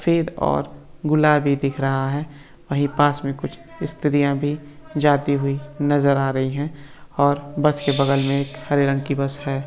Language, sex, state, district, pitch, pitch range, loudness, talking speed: Hindi, male, Maharashtra, Nagpur, 145 Hz, 140-145 Hz, -21 LUFS, 180 wpm